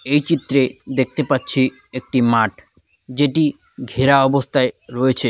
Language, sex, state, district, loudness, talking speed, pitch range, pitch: Bengali, male, West Bengal, Dakshin Dinajpur, -18 LUFS, 115 wpm, 125-140 Hz, 130 Hz